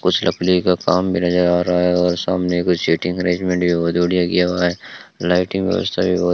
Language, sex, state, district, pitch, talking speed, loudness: Hindi, male, Rajasthan, Bikaner, 90 Hz, 235 wpm, -18 LUFS